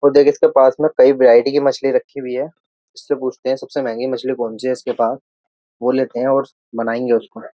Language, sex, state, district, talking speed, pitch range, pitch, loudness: Hindi, male, Uttar Pradesh, Jyotiba Phule Nagar, 240 wpm, 125-140 Hz, 130 Hz, -17 LUFS